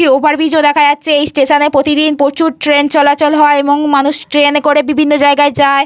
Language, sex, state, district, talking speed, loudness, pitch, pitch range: Bengali, female, Jharkhand, Jamtara, 205 wpm, -10 LUFS, 295 Hz, 285-300 Hz